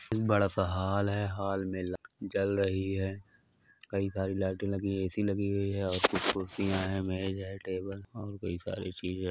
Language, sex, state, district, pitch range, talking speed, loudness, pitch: Hindi, male, Uttar Pradesh, Hamirpur, 95-100 Hz, 220 wpm, -32 LUFS, 95 Hz